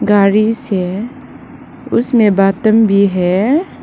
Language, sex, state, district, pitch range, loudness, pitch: Hindi, female, Arunachal Pradesh, Lower Dibang Valley, 195-230 Hz, -13 LUFS, 210 Hz